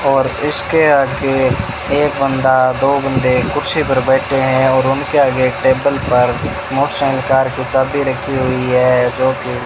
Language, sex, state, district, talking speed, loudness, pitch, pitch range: Hindi, male, Rajasthan, Bikaner, 160 wpm, -14 LUFS, 135 Hz, 130-140 Hz